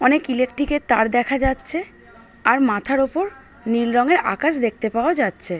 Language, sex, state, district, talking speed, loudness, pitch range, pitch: Bengali, female, West Bengal, Malda, 150 wpm, -20 LUFS, 230-295 Hz, 255 Hz